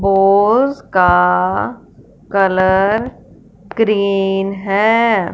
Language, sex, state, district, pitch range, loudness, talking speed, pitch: Hindi, female, Punjab, Fazilka, 190-215 Hz, -14 LUFS, 55 wpm, 195 Hz